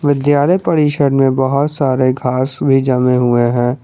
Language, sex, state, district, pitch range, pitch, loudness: Hindi, male, Jharkhand, Garhwa, 125-145 Hz, 135 Hz, -14 LUFS